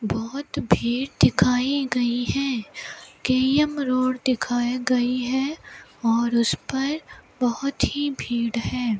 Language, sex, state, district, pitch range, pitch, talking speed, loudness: Hindi, female, Rajasthan, Bikaner, 240-275 Hz, 255 Hz, 105 wpm, -23 LUFS